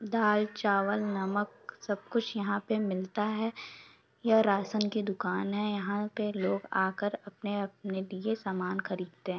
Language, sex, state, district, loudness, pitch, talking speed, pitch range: Hindi, female, Chhattisgarh, Sukma, -32 LUFS, 205 Hz, 145 wpm, 195-210 Hz